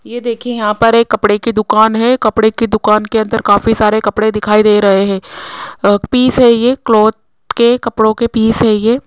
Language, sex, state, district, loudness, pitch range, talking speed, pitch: Hindi, female, Rajasthan, Jaipur, -11 LUFS, 210-235 Hz, 210 wpm, 220 Hz